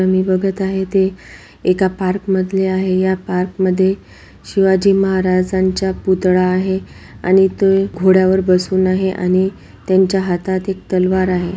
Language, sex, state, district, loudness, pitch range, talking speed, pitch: Marathi, female, Maharashtra, Solapur, -16 LUFS, 185-190 Hz, 135 wpm, 190 Hz